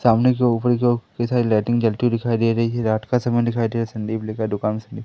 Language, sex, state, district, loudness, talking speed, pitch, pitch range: Hindi, male, Madhya Pradesh, Katni, -20 LUFS, 310 wpm, 115 Hz, 110-120 Hz